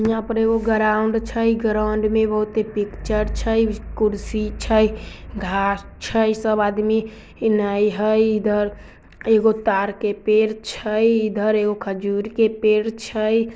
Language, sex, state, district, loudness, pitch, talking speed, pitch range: Maithili, female, Bihar, Samastipur, -20 LUFS, 215 Hz, 140 wpm, 210-220 Hz